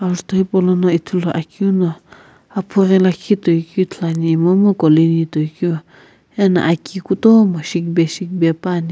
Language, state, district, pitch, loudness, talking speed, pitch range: Sumi, Nagaland, Kohima, 180 Hz, -16 LUFS, 115 wpm, 165-190 Hz